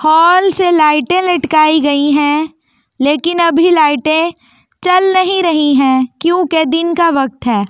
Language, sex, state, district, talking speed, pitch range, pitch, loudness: Hindi, female, Delhi, New Delhi, 140 wpm, 290-345 Hz, 315 Hz, -12 LUFS